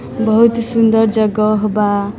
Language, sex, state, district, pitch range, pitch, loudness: Hindi, female, Bihar, East Champaran, 210-230 Hz, 220 Hz, -13 LUFS